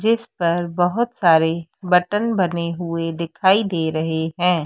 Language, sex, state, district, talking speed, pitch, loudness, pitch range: Hindi, female, Madhya Pradesh, Dhar, 140 wpm, 175 Hz, -20 LUFS, 165-190 Hz